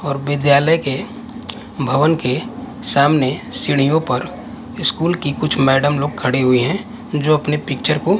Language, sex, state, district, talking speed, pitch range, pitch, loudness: Hindi, male, Bihar, West Champaran, 145 wpm, 135-160 Hz, 145 Hz, -17 LUFS